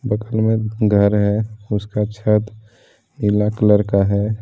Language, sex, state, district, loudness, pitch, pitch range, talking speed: Hindi, male, Jharkhand, Deoghar, -18 LUFS, 105 Hz, 105-110 Hz, 120 wpm